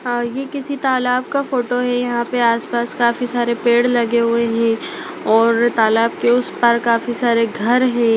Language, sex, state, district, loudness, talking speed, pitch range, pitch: Bhojpuri, female, Bihar, Saran, -17 LUFS, 185 wpm, 235-250 Hz, 240 Hz